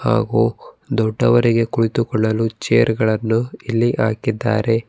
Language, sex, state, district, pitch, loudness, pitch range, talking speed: Kannada, male, Karnataka, Bangalore, 115 Hz, -18 LUFS, 110-115 Hz, 85 wpm